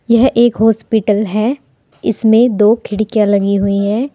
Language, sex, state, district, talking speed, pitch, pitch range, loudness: Hindi, female, Uttar Pradesh, Saharanpur, 145 wpm, 220 Hz, 210-235 Hz, -13 LUFS